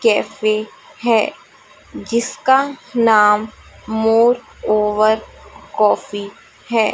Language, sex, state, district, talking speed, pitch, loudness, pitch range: Hindi, female, Chhattisgarh, Raipur, 70 wpm, 220 Hz, -17 LUFS, 215-235 Hz